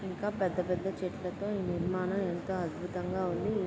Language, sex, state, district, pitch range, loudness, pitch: Telugu, female, Andhra Pradesh, Guntur, 180-195 Hz, -34 LUFS, 185 Hz